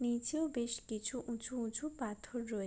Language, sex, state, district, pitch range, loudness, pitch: Bengali, female, West Bengal, Jalpaiguri, 225-250 Hz, -40 LUFS, 235 Hz